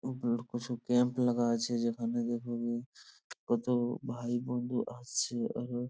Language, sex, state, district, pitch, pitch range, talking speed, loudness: Bengali, male, West Bengal, Purulia, 120 Hz, 120-125 Hz, 130 wpm, -34 LUFS